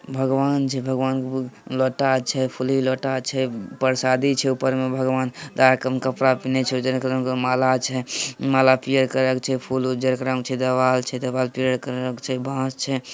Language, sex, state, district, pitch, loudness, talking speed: Hindi, male, Bihar, Samastipur, 130 Hz, -22 LUFS, 180 wpm